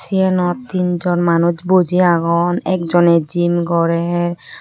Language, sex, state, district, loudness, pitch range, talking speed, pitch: Chakma, female, Tripura, Unakoti, -16 LUFS, 170-180 Hz, 105 wpm, 175 Hz